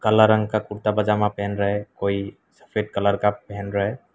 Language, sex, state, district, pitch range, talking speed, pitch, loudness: Hindi, male, Assam, Kamrup Metropolitan, 100-105 Hz, 215 wpm, 105 Hz, -23 LUFS